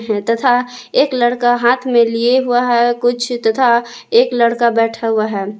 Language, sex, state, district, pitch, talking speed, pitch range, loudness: Hindi, female, Jharkhand, Palamu, 240 Hz, 160 wpm, 230-245 Hz, -14 LUFS